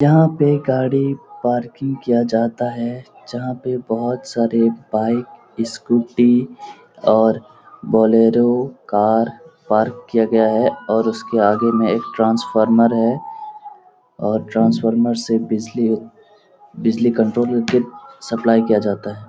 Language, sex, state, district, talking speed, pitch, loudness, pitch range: Hindi, male, Bihar, Lakhisarai, 125 wpm, 120 Hz, -18 LUFS, 115-130 Hz